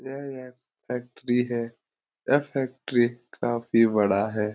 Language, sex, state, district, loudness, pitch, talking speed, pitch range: Hindi, male, Bihar, Jahanabad, -26 LUFS, 120 Hz, 120 wpm, 115-130 Hz